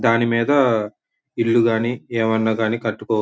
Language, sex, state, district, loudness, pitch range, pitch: Telugu, male, Andhra Pradesh, Guntur, -19 LUFS, 110-115 Hz, 115 Hz